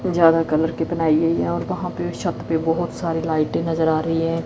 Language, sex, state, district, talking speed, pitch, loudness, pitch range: Hindi, female, Chandigarh, Chandigarh, 230 wpm, 165 Hz, -21 LUFS, 160-165 Hz